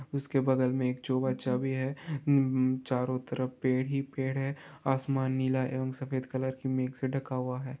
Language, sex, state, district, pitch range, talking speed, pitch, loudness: Hindi, male, Bihar, Gopalganj, 130-135 Hz, 185 wpm, 130 Hz, -31 LUFS